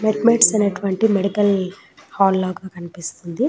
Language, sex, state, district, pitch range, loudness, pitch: Telugu, female, Telangana, Nalgonda, 185-215 Hz, -18 LUFS, 195 Hz